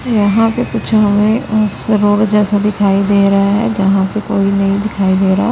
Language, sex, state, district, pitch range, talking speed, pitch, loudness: Hindi, female, Chandigarh, Chandigarh, 195-215 Hz, 185 wpm, 205 Hz, -13 LUFS